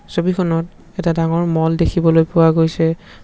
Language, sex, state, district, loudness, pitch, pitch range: Assamese, male, Assam, Sonitpur, -16 LUFS, 165 Hz, 160-170 Hz